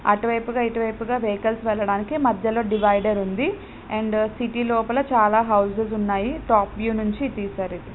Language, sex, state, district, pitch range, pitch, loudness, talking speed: Telugu, female, Telangana, Karimnagar, 205-235 Hz, 220 Hz, -22 LUFS, 175 wpm